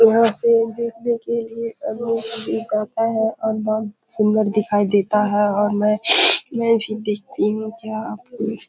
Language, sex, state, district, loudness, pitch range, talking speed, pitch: Hindi, female, Bihar, Kishanganj, -19 LUFS, 210-230 Hz, 140 wpm, 220 Hz